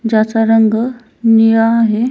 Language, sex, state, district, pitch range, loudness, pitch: Marathi, female, Maharashtra, Chandrapur, 225-230 Hz, -12 LUFS, 225 Hz